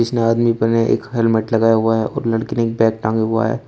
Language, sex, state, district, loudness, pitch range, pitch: Hindi, male, Uttar Pradesh, Shamli, -17 LUFS, 110-115 Hz, 115 Hz